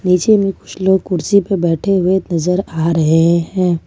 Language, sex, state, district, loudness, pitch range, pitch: Hindi, female, Jharkhand, Ranchi, -14 LUFS, 170-195 Hz, 180 Hz